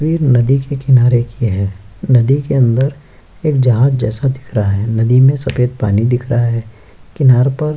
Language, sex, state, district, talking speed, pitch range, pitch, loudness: Hindi, male, Bihar, Kishanganj, 195 wpm, 115-135 Hz, 125 Hz, -14 LUFS